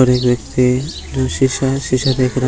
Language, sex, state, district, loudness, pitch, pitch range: Hindi, male, Bihar, Samastipur, -16 LUFS, 130 Hz, 125-130 Hz